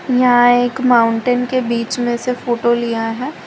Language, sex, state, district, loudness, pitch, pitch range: Hindi, female, Gujarat, Valsad, -15 LUFS, 245 Hz, 235-250 Hz